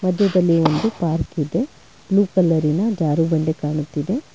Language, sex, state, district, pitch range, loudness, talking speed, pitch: Kannada, female, Karnataka, Bangalore, 155-195 Hz, -19 LUFS, 110 wpm, 165 Hz